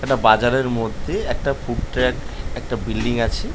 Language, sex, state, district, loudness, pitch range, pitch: Bengali, male, West Bengal, North 24 Parganas, -21 LUFS, 110-125 Hz, 120 Hz